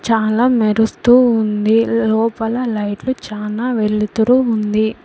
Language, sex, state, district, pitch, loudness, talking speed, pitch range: Telugu, female, Andhra Pradesh, Sri Satya Sai, 225 Hz, -16 LUFS, 95 wpm, 215-235 Hz